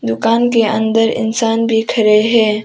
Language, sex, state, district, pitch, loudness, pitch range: Hindi, female, Arunachal Pradesh, Papum Pare, 225 Hz, -13 LUFS, 220-230 Hz